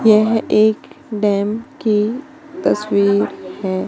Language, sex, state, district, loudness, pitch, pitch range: Hindi, female, Madhya Pradesh, Katni, -17 LUFS, 215 Hz, 205-280 Hz